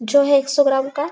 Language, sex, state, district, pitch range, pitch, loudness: Hindi, female, Chhattisgarh, Bastar, 270-285 Hz, 280 Hz, -17 LUFS